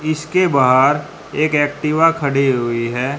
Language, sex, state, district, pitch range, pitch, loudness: Hindi, male, Haryana, Rohtak, 130-155 Hz, 145 Hz, -16 LUFS